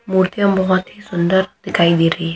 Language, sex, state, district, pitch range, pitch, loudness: Hindi, female, Rajasthan, Nagaur, 170-190 Hz, 185 Hz, -16 LUFS